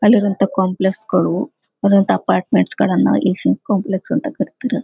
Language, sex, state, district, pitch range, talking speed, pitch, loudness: Kannada, female, Karnataka, Gulbarga, 190-250 Hz, 110 wpm, 200 Hz, -17 LUFS